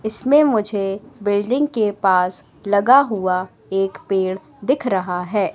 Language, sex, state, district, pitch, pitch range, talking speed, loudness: Hindi, female, Madhya Pradesh, Katni, 205 Hz, 190-220 Hz, 130 wpm, -19 LUFS